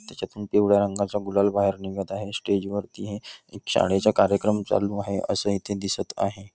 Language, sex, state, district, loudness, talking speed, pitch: Hindi, male, Maharashtra, Chandrapur, -25 LUFS, 185 wpm, 100 Hz